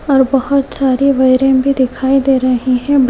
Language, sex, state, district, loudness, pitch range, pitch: Hindi, female, Uttar Pradesh, Hamirpur, -12 LUFS, 260-275 Hz, 265 Hz